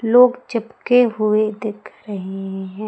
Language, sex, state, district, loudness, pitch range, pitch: Hindi, female, Madhya Pradesh, Umaria, -19 LUFS, 205-240 Hz, 215 Hz